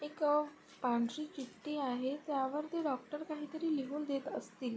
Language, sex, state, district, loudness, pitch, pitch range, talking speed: Marathi, female, Maharashtra, Sindhudurg, -38 LUFS, 290 Hz, 265-300 Hz, 140 wpm